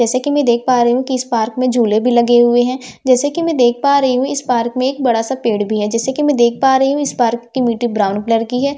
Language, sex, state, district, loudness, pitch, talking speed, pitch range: Hindi, female, Delhi, New Delhi, -15 LUFS, 245 Hz, 320 wpm, 235-265 Hz